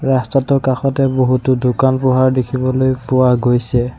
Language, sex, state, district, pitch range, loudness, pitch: Assamese, male, Assam, Sonitpur, 125-130 Hz, -15 LUFS, 130 Hz